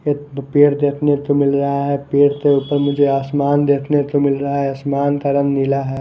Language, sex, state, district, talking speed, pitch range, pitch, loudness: Hindi, male, Maharashtra, Mumbai Suburban, 230 wpm, 140-145 Hz, 140 Hz, -16 LUFS